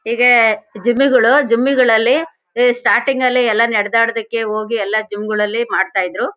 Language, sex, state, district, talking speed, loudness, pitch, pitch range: Kannada, female, Karnataka, Shimoga, 150 wpm, -14 LUFS, 230 Hz, 215-245 Hz